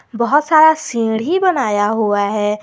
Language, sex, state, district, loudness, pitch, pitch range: Hindi, female, Jharkhand, Garhwa, -15 LUFS, 230 Hz, 210-310 Hz